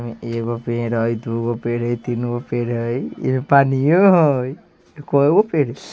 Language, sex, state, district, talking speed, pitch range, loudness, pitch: Bajjika, male, Bihar, Vaishali, 150 wpm, 120-140 Hz, -19 LUFS, 120 Hz